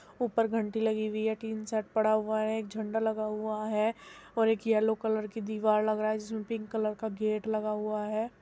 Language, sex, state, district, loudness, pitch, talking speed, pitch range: Hindi, female, Uttar Pradesh, Muzaffarnagar, -31 LUFS, 220 Hz, 230 wpm, 215-220 Hz